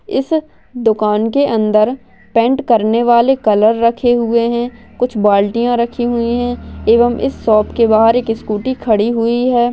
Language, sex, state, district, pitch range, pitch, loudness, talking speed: Hindi, female, Maharashtra, Aurangabad, 220-245 Hz, 235 Hz, -14 LUFS, 150 wpm